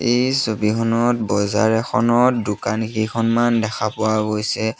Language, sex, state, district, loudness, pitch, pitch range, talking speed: Assamese, male, Assam, Sonitpur, -19 LUFS, 110 Hz, 110-120 Hz, 115 wpm